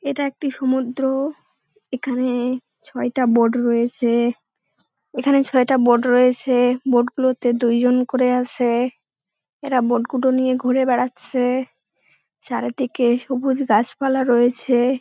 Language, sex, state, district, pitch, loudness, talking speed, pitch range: Bengali, female, West Bengal, Dakshin Dinajpur, 250 Hz, -19 LUFS, 105 wpm, 245-265 Hz